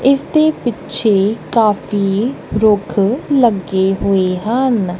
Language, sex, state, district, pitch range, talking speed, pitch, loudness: Punjabi, female, Punjab, Kapurthala, 195-245 Hz, 95 wpm, 210 Hz, -15 LUFS